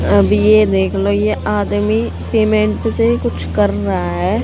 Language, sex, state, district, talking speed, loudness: Hindi, female, Haryana, Jhajjar, 160 wpm, -15 LUFS